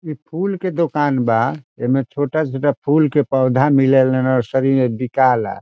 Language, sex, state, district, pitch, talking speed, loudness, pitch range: Bhojpuri, male, Bihar, Saran, 135 Hz, 200 wpm, -17 LUFS, 130-150 Hz